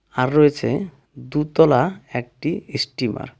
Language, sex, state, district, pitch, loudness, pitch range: Bengali, male, West Bengal, Darjeeling, 140 Hz, -20 LUFS, 125-150 Hz